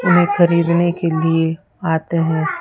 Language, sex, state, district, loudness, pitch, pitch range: Hindi, female, Rajasthan, Jaipur, -17 LUFS, 165 Hz, 160-170 Hz